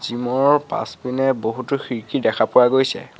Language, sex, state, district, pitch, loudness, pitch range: Assamese, male, Assam, Sonitpur, 130 Hz, -19 LUFS, 120-135 Hz